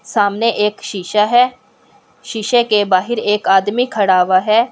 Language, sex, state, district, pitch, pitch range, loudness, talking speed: Hindi, female, Delhi, New Delhi, 210 Hz, 200-230 Hz, -15 LUFS, 155 wpm